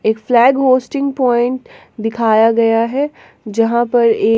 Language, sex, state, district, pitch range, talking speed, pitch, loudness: Hindi, female, Jharkhand, Garhwa, 225-255 Hz, 135 wpm, 235 Hz, -14 LUFS